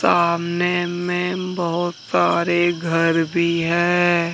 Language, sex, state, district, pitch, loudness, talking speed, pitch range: Hindi, male, Jharkhand, Deoghar, 170 Hz, -19 LUFS, 95 wpm, 170-175 Hz